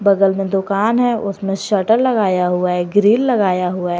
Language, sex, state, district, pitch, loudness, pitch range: Hindi, female, Jharkhand, Garhwa, 195 Hz, -16 LUFS, 185-215 Hz